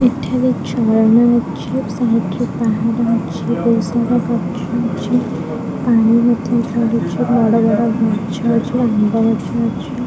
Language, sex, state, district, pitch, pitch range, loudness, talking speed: Odia, female, Odisha, Khordha, 230 Hz, 225-240 Hz, -16 LUFS, 115 wpm